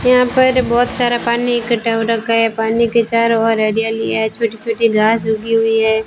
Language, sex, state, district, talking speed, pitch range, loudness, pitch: Hindi, female, Rajasthan, Bikaner, 210 wpm, 225-235 Hz, -15 LUFS, 230 Hz